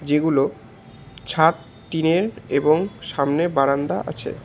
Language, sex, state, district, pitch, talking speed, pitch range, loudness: Bengali, male, West Bengal, Alipurduar, 145 Hz, 95 wpm, 135-160 Hz, -21 LUFS